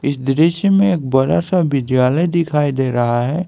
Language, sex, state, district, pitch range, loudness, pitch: Hindi, male, Jharkhand, Ranchi, 130-170 Hz, -16 LUFS, 145 Hz